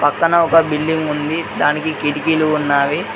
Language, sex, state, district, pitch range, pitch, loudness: Telugu, male, Telangana, Mahabubabad, 145-160 Hz, 155 Hz, -16 LUFS